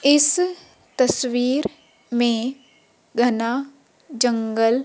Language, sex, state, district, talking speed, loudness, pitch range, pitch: Hindi, female, Madhya Pradesh, Umaria, 60 wpm, -21 LUFS, 240-275 Hz, 250 Hz